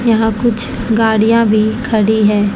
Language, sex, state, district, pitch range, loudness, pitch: Hindi, male, Haryana, Charkhi Dadri, 215-230 Hz, -13 LUFS, 220 Hz